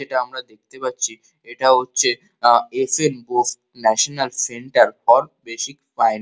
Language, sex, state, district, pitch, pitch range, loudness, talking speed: Bengali, male, West Bengal, Kolkata, 125 Hz, 120-130 Hz, -19 LUFS, 145 wpm